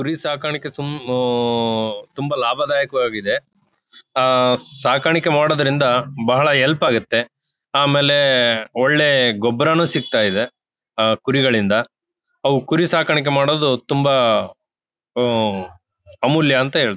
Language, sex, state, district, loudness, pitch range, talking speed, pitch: Kannada, male, Karnataka, Bellary, -17 LUFS, 120-150 Hz, 100 wpm, 140 Hz